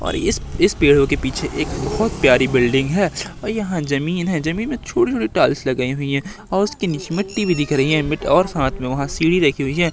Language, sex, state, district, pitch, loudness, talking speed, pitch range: Hindi, male, Madhya Pradesh, Katni, 155 Hz, -19 LUFS, 240 wpm, 140-190 Hz